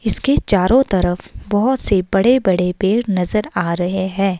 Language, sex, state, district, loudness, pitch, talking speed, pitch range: Hindi, female, Himachal Pradesh, Shimla, -16 LUFS, 195 Hz, 150 wpm, 180-220 Hz